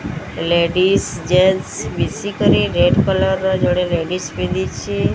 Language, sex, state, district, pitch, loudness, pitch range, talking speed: Odia, female, Odisha, Sambalpur, 170 Hz, -17 LUFS, 120-185 Hz, 95 wpm